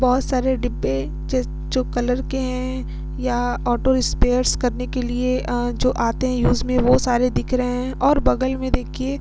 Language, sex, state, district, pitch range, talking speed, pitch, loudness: Hindi, female, Bihar, Vaishali, 245-255 Hz, 190 wpm, 255 Hz, -21 LUFS